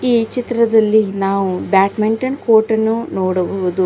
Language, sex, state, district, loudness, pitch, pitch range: Kannada, female, Karnataka, Bidar, -16 LUFS, 220 Hz, 195-230 Hz